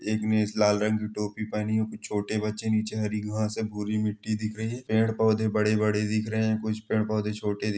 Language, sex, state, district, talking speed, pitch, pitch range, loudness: Hindi, male, Chhattisgarh, Balrampur, 230 wpm, 110 Hz, 105-110 Hz, -27 LUFS